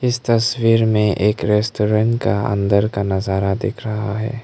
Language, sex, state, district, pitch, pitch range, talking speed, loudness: Hindi, male, Arunachal Pradesh, Lower Dibang Valley, 105 Hz, 100-115 Hz, 160 wpm, -18 LUFS